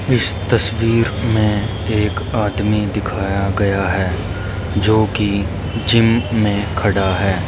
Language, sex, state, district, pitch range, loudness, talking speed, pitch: Hindi, male, Haryana, Rohtak, 100-110 Hz, -17 LUFS, 110 wpm, 105 Hz